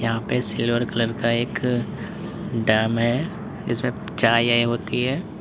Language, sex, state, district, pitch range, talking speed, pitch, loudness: Hindi, male, Uttar Pradesh, Lalitpur, 115-120 Hz, 110 wpm, 120 Hz, -23 LUFS